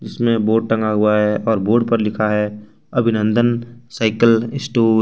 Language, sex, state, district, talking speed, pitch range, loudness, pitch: Hindi, male, Jharkhand, Ranchi, 165 wpm, 105-115 Hz, -17 LUFS, 115 Hz